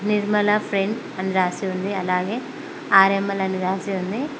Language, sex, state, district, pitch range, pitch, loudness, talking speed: Telugu, female, Telangana, Mahabubabad, 190-210 Hz, 195 Hz, -21 LUFS, 125 wpm